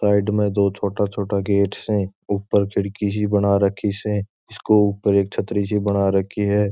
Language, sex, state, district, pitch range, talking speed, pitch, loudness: Marwari, male, Rajasthan, Churu, 100-105 Hz, 185 wpm, 100 Hz, -21 LUFS